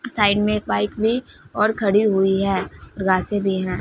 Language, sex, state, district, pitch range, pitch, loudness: Hindi, female, Punjab, Fazilka, 195-215 Hz, 205 Hz, -20 LUFS